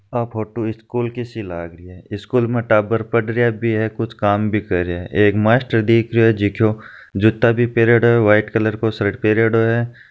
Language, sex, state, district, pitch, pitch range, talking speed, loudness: Marwari, male, Rajasthan, Nagaur, 110 Hz, 105-115 Hz, 210 wpm, -17 LUFS